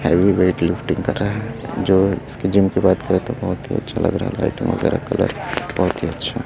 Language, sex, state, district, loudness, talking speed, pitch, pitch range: Hindi, male, Chhattisgarh, Raipur, -19 LUFS, 230 wpm, 95 Hz, 90-110 Hz